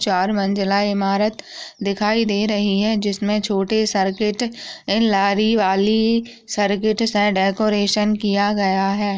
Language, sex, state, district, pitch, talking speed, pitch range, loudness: Hindi, female, Uttar Pradesh, Ghazipur, 205 Hz, 120 wpm, 200-215 Hz, -19 LUFS